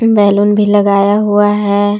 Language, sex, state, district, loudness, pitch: Hindi, female, Jharkhand, Palamu, -11 LUFS, 205 Hz